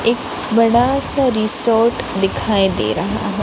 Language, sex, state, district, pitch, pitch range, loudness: Hindi, female, Gujarat, Gandhinagar, 230 Hz, 215-245 Hz, -15 LUFS